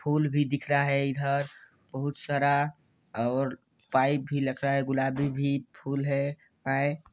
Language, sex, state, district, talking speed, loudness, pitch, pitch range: Hindi, male, Chhattisgarh, Sarguja, 160 wpm, -29 LUFS, 140 Hz, 135-145 Hz